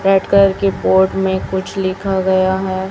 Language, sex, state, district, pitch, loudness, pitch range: Hindi, female, Chhattisgarh, Raipur, 190 Hz, -15 LUFS, 190-195 Hz